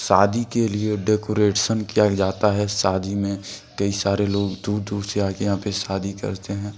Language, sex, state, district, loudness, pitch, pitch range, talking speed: Hindi, male, Jharkhand, Deoghar, -22 LUFS, 100 Hz, 100-105 Hz, 185 wpm